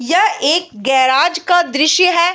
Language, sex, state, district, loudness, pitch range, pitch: Hindi, female, Bihar, Bhagalpur, -13 LUFS, 275-355 Hz, 340 Hz